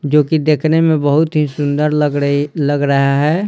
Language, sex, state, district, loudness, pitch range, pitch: Hindi, male, Bihar, Patna, -14 LUFS, 145-155 Hz, 150 Hz